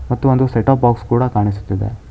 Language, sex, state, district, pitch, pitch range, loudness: Kannada, male, Karnataka, Bangalore, 120 Hz, 105-130 Hz, -16 LUFS